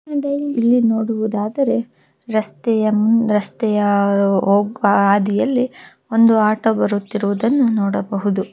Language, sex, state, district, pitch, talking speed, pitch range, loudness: Kannada, female, Karnataka, Bellary, 215 Hz, 70 wpm, 200-235 Hz, -17 LUFS